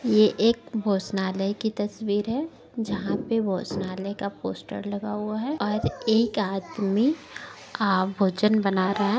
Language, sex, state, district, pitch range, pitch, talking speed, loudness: Bhojpuri, female, Bihar, Saran, 195-220 Hz, 205 Hz, 145 wpm, -26 LUFS